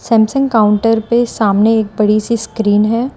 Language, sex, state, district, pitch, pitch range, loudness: Hindi, female, Gujarat, Valsad, 225 Hz, 215-230 Hz, -13 LUFS